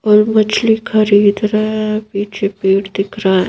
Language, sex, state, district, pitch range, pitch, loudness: Hindi, female, Madhya Pradesh, Bhopal, 200-215 Hz, 210 Hz, -14 LUFS